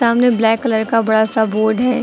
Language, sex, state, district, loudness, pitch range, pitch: Hindi, female, Uttar Pradesh, Lucknow, -15 LUFS, 220-240 Hz, 225 Hz